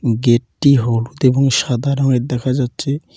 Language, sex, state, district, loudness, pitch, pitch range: Bengali, male, West Bengal, Cooch Behar, -16 LUFS, 130 Hz, 120-140 Hz